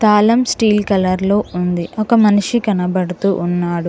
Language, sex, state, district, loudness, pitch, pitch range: Telugu, female, Telangana, Mahabubabad, -15 LUFS, 200 Hz, 180-215 Hz